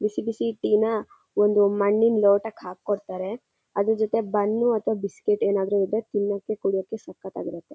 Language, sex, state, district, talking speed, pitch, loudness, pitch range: Kannada, female, Karnataka, Shimoga, 160 wpm, 210 Hz, -24 LUFS, 200-220 Hz